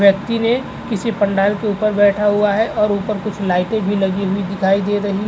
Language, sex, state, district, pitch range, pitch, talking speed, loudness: Hindi, male, Uttar Pradesh, Jalaun, 200-215 Hz, 205 Hz, 215 wpm, -17 LUFS